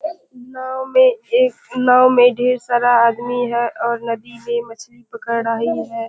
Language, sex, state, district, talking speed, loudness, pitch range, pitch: Hindi, female, Bihar, Kishanganj, 155 wpm, -17 LUFS, 235-255 Hz, 240 Hz